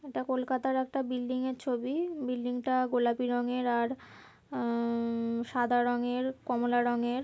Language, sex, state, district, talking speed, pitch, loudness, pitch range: Bengali, female, West Bengal, Kolkata, 135 wpm, 245 Hz, -31 LUFS, 240-260 Hz